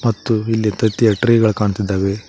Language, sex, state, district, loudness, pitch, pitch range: Kannada, male, Karnataka, Koppal, -16 LUFS, 110 Hz, 100-115 Hz